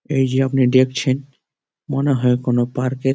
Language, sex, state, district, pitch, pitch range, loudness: Bengali, male, West Bengal, Malda, 130 Hz, 130-135 Hz, -18 LUFS